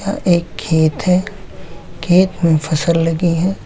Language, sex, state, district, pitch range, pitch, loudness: Hindi, male, Bihar, Samastipur, 165-185 Hz, 170 Hz, -15 LUFS